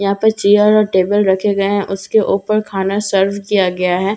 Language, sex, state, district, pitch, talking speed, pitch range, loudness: Hindi, female, Bihar, Katihar, 200 Hz, 260 wpm, 195-210 Hz, -14 LUFS